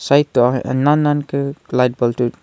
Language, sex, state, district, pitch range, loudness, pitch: Wancho, male, Arunachal Pradesh, Longding, 125-145 Hz, -17 LUFS, 135 Hz